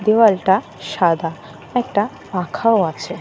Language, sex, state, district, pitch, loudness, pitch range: Bengali, female, Jharkhand, Jamtara, 190 Hz, -18 LUFS, 165-220 Hz